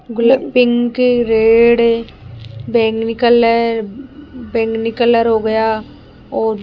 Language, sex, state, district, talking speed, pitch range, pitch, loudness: Hindi, female, Rajasthan, Jaipur, 90 wpm, 225-240 Hz, 230 Hz, -14 LUFS